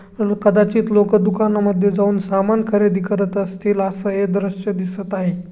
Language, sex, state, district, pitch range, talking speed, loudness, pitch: Marathi, female, Maharashtra, Chandrapur, 195-210 Hz, 150 wpm, -18 LUFS, 200 Hz